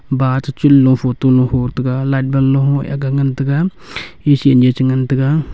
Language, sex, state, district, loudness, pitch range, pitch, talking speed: Wancho, male, Arunachal Pradesh, Longding, -14 LUFS, 130-140 Hz, 135 Hz, 195 wpm